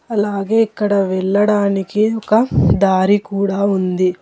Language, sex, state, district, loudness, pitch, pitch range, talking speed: Telugu, female, Telangana, Hyderabad, -16 LUFS, 200 Hz, 195-210 Hz, 100 wpm